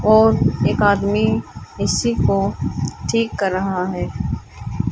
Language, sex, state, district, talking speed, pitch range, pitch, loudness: Hindi, female, Haryana, Charkhi Dadri, 110 wpm, 180-215 Hz, 200 Hz, -19 LUFS